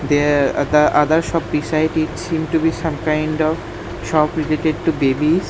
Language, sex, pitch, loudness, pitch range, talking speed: English, male, 155 Hz, -18 LUFS, 145-160 Hz, 185 wpm